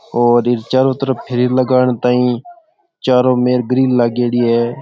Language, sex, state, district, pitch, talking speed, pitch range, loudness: Rajasthani, male, Rajasthan, Churu, 125 Hz, 150 wpm, 120-130 Hz, -14 LUFS